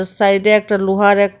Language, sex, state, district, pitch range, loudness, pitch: Bengali, female, Tripura, West Tripura, 195-205 Hz, -14 LUFS, 200 Hz